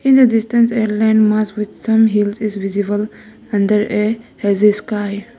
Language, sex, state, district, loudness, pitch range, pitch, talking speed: English, female, Arunachal Pradesh, Lower Dibang Valley, -15 LUFS, 205-225 Hz, 215 Hz, 165 wpm